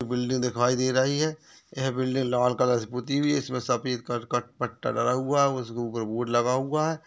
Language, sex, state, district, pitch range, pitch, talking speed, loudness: Hindi, male, Chhattisgarh, Raigarh, 125-135 Hz, 125 Hz, 235 wpm, -26 LUFS